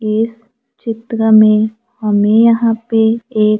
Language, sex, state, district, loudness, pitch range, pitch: Hindi, female, Maharashtra, Gondia, -13 LUFS, 215-230 Hz, 225 Hz